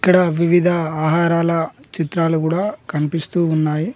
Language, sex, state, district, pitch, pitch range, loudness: Telugu, male, Telangana, Mahabubabad, 165 Hz, 160-175 Hz, -18 LUFS